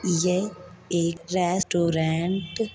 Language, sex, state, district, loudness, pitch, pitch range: Hindi, female, Uttar Pradesh, Hamirpur, -25 LUFS, 175 Hz, 170-185 Hz